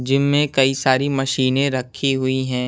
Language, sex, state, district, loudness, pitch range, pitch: Hindi, male, Punjab, Kapurthala, -19 LUFS, 130-140 Hz, 135 Hz